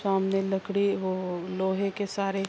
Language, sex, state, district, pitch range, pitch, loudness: Urdu, female, Andhra Pradesh, Anantapur, 190-200 Hz, 195 Hz, -28 LUFS